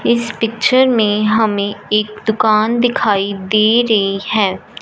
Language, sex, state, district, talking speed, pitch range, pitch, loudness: Hindi, female, Punjab, Fazilka, 125 wpm, 210-235 Hz, 215 Hz, -14 LUFS